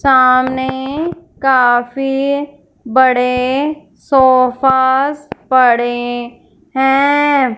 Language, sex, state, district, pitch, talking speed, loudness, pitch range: Hindi, female, Punjab, Fazilka, 260 Hz, 50 wpm, -13 LUFS, 250-275 Hz